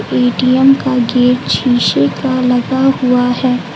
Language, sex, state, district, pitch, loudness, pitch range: Hindi, female, Uttar Pradesh, Lucknow, 250 Hz, -12 LUFS, 245-260 Hz